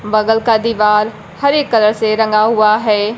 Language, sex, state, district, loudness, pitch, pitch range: Hindi, female, Bihar, Kaimur, -13 LUFS, 215 Hz, 215-225 Hz